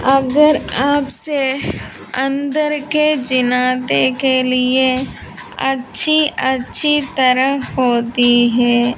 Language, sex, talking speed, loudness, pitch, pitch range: Hindi, female, 80 wpm, -15 LUFS, 265 Hz, 250-285 Hz